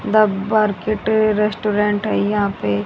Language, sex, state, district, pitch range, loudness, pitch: Hindi, female, Haryana, Rohtak, 200-215 Hz, -18 LUFS, 210 Hz